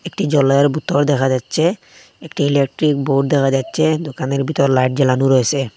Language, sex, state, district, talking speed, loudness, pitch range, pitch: Bengali, male, Assam, Hailakandi, 155 wpm, -16 LUFS, 135-155 Hz, 140 Hz